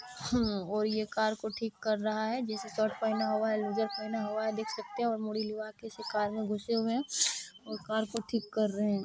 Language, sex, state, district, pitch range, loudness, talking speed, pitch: Hindi, female, Bihar, Kishanganj, 210-225 Hz, -33 LUFS, 250 wpm, 215 Hz